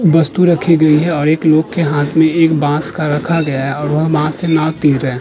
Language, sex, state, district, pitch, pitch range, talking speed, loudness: Hindi, male, Uttar Pradesh, Jalaun, 155 Hz, 150-165 Hz, 275 wpm, -13 LUFS